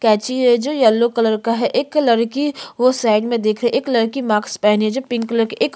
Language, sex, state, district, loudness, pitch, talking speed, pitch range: Hindi, female, Chhattisgarh, Sukma, -17 LUFS, 235 Hz, 260 wpm, 220-255 Hz